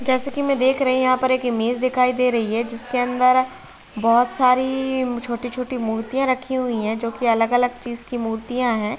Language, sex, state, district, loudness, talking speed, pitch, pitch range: Hindi, female, Bihar, Gopalganj, -20 LUFS, 205 wpm, 250 Hz, 235-255 Hz